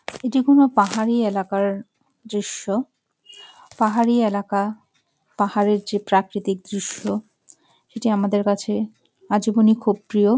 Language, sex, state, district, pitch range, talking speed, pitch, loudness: Bengali, female, West Bengal, Jalpaiguri, 205-230 Hz, 100 wpm, 210 Hz, -21 LUFS